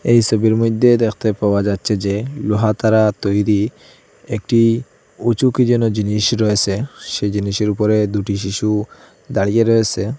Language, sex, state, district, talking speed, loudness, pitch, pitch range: Bengali, male, Assam, Hailakandi, 135 wpm, -17 LUFS, 110 Hz, 105-115 Hz